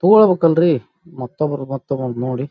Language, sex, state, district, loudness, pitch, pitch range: Kannada, male, Karnataka, Bijapur, -17 LUFS, 140 Hz, 125-170 Hz